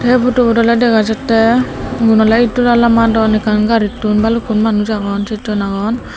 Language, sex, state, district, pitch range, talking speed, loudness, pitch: Chakma, female, Tripura, Dhalai, 215-235 Hz, 155 wpm, -13 LUFS, 225 Hz